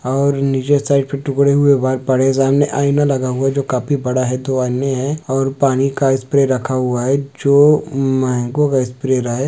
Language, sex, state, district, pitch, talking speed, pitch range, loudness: Hindi, male, West Bengal, Malda, 135 Hz, 190 wpm, 130-140 Hz, -16 LUFS